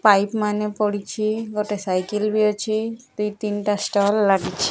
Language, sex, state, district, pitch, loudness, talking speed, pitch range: Odia, male, Odisha, Nuapada, 210 Hz, -22 LUFS, 140 wpm, 205-215 Hz